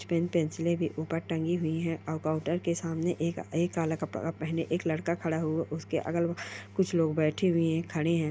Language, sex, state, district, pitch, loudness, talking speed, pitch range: Hindi, female, Rajasthan, Churu, 165 Hz, -31 LUFS, 225 wpm, 160-170 Hz